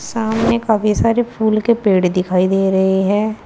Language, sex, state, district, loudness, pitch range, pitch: Hindi, female, Uttar Pradesh, Saharanpur, -15 LUFS, 190-225 Hz, 215 Hz